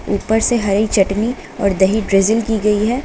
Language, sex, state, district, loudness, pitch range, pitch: Hindi, female, Uttar Pradesh, Lucknow, -16 LUFS, 200-225 Hz, 215 Hz